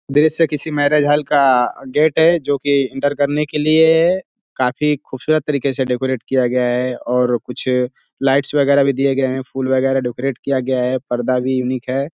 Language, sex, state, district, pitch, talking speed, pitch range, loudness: Hindi, male, Uttar Pradesh, Ghazipur, 135 Hz, 190 wpm, 130-150 Hz, -17 LUFS